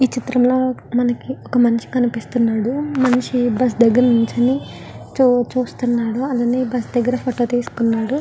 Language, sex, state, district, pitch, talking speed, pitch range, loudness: Telugu, female, Andhra Pradesh, Visakhapatnam, 245 Hz, 130 wpm, 240-255 Hz, -18 LUFS